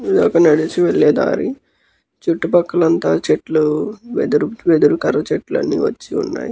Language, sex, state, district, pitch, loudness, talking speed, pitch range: Telugu, male, Andhra Pradesh, Krishna, 170 Hz, -16 LUFS, 140 wpm, 160-180 Hz